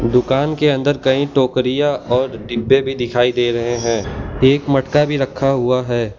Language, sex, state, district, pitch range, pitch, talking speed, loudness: Hindi, male, Gujarat, Valsad, 120-135 Hz, 130 Hz, 175 wpm, -17 LUFS